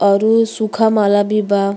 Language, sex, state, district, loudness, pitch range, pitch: Bhojpuri, female, Uttar Pradesh, Deoria, -15 LUFS, 200-220 Hz, 210 Hz